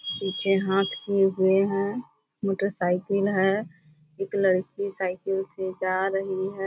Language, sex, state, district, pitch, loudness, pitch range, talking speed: Hindi, female, Bihar, Purnia, 195 Hz, -25 LUFS, 185-195 Hz, 125 wpm